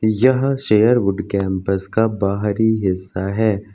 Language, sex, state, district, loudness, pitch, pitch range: Hindi, male, Uttar Pradesh, Lucknow, -18 LUFS, 105 Hz, 95-110 Hz